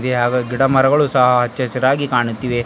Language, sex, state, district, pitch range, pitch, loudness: Kannada, male, Karnataka, Bidar, 120-135 Hz, 125 Hz, -16 LUFS